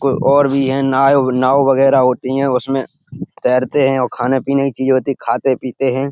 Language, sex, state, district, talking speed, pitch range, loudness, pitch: Hindi, male, Uttar Pradesh, Etah, 215 wpm, 130-135 Hz, -14 LUFS, 135 Hz